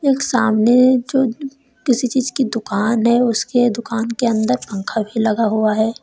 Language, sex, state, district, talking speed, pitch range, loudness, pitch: Hindi, female, Uttar Pradesh, Lalitpur, 170 wpm, 220-255 Hz, -17 LUFS, 235 Hz